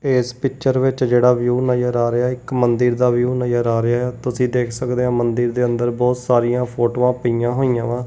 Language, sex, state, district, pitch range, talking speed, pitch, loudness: Punjabi, male, Punjab, Kapurthala, 120-125 Hz, 230 wpm, 125 Hz, -18 LUFS